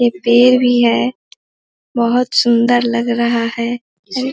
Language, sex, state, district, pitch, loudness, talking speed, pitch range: Hindi, female, Bihar, Sitamarhi, 240 Hz, -14 LUFS, 150 wpm, 235-245 Hz